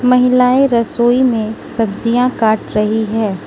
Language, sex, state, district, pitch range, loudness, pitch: Hindi, female, Manipur, Imphal West, 220-250 Hz, -14 LUFS, 230 Hz